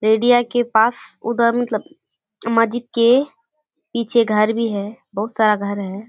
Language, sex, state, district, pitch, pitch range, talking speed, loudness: Hindi, female, Bihar, Kishanganj, 230 Hz, 215-245 Hz, 130 wpm, -18 LUFS